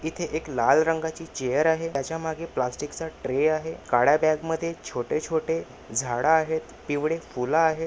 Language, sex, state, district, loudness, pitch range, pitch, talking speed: Marathi, male, Maharashtra, Nagpur, -26 LUFS, 145-160 Hz, 160 Hz, 160 wpm